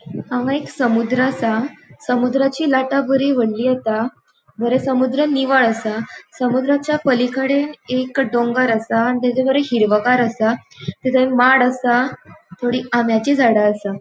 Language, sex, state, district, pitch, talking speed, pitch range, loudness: Konkani, female, Goa, North and South Goa, 250 Hz, 130 wpm, 230-265 Hz, -17 LUFS